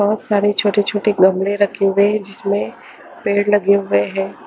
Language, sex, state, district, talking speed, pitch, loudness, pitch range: Hindi, female, Haryana, Charkhi Dadri, 160 wpm, 200 Hz, -16 LUFS, 195-205 Hz